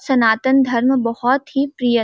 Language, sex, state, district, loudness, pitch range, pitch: Hindi, female, Chhattisgarh, Balrampur, -17 LUFS, 235-270 Hz, 255 Hz